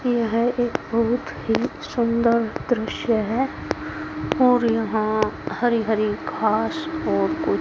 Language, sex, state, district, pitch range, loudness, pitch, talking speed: Hindi, female, Haryana, Jhajjar, 225-245 Hz, -22 LUFS, 235 Hz, 110 wpm